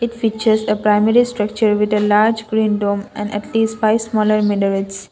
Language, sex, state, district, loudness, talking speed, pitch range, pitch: English, female, Assam, Kamrup Metropolitan, -17 LUFS, 175 wpm, 210-220 Hz, 215 Hz